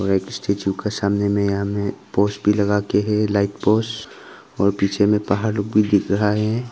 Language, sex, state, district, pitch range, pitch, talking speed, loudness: Hindi, male, Arunachal Pradesh, Longding, 100-105 Hz, 100 Hz, 195 wpm, -20 LUFS